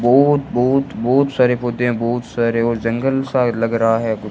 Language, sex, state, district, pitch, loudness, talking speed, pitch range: Hindi, female, Rajasthan, Bikaner, 120 Hz, -17 LUFS, 180 wpm, 115-130 Hz